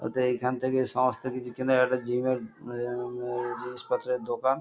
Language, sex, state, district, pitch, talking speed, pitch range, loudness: Bengali, male, West Bengal, Kolkata, 125 Hz, 145 wpm, 125-130 Hz, -29 LUFS